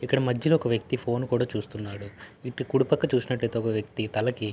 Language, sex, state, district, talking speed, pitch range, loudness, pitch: Telugu, male, Andhra Pradesh, Guntur, 145 wpm, 110-130 Hz, -27 LUFS, 120 Hz